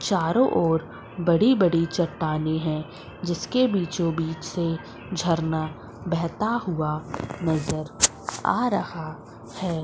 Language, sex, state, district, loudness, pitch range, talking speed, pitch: Hindi, female, Madhya Pradesh, Umaria, -25 LUFS, 155-175 Hz, 105 wpm, 165 Hz